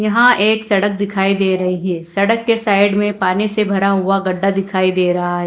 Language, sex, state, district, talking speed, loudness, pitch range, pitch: Hindi, female, Bihar, Katihar, 220 wpm, -15 LUFS, 185-205 Hz, 195 Hz